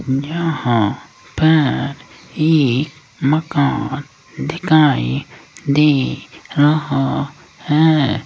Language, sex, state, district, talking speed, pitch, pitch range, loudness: Hindi, male, Rajasthan, Jaipur, 60 wpm, 150 Hz, 135-155 Hz, -17 LUFS